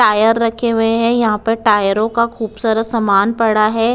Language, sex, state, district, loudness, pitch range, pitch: Hindi, female, Punjab, Kapurthala, -15 LUFS, 215-230 Hz, 225 Hz